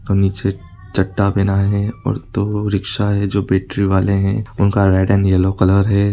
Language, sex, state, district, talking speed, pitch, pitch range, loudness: Hindi, male, Bihar, East Champaran, 175 wpm, 100 Hz, 95-100 Hz, -17 LUFS